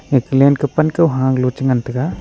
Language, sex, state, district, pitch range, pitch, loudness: Wancho, male, Arunachal Pradesh, Longding, 130-145 Hz, 135 Hz, -15 LUFS